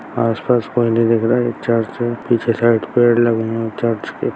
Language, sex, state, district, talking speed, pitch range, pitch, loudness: Hindi, male, Bihar, Bhagalpur, 220 wpm, 115-120 Hz, 115 Hz, -17 LUFS